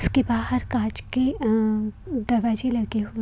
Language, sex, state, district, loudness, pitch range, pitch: Hindi, female, Haryana, Jhajjar, -23 LUFS, 220-250 Hz, 230 Hz